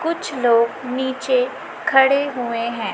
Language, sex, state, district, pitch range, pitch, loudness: Hindi, female, Chhattisgarh, Raipur, 240-335 Hz, 265 Hz, -19 LUFS